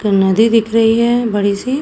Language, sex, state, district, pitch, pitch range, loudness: Hindi, female, Uttar Pradesh, Jalaun, 225 Hz, 205-235 Hz, -13 LUFS